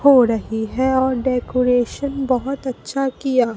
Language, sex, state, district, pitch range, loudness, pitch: Hindi, female, Bihar, Katihar, 245-270 Hz, -19 LUFS, 260 Hz